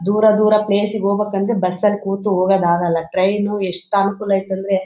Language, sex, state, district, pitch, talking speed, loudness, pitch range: Kannada, male, Karnataka, Bellary, 200 Hz, 195 wpm, -17 LUFS, 190-205 Hz